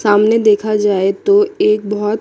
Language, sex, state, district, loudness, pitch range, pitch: Hindi, female, Chandigarh, Chandigarh, -13 LUFS, 205-225 Hz, 210 Hz